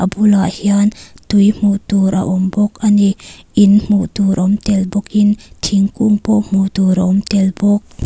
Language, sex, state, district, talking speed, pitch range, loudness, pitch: Mizo, female, Mizoram, Aizawl, 180 wpm, 195-210 Hz, -14 LUFS, 200 Hz